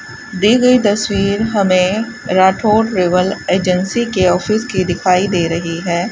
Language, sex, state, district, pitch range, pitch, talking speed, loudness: Hindi, female, Rajasthan, Bikaner, 180-215 Hz, 190 Hz, 135 wpm, -14 LUFS